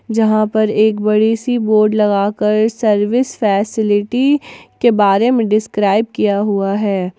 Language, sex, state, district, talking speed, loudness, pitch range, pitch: Hindi, female, Jharkhand, Ranchi, 135 wpm, -14 LUFS, 205-225 Hz, 215 Hz